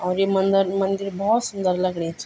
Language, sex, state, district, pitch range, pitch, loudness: Garhwali, female, Uttarakhand, Tehri Garhwal, 185-195 Hz, 195 Hz, -22 LUFS